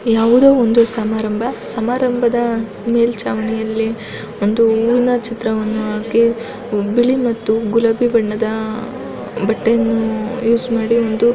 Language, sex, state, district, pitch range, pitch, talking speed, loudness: Kannada, female, Karnataka, Raichur, 220-235 Hz, 230 Hz, 90 wpm, -16 LUFS